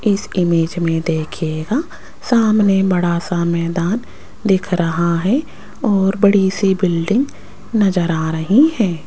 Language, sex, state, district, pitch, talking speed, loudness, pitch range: Hindi, female, Rajasthan, Jaipur, 190 Hz, 125 wpm, -17 LUFS, 170-210 Hz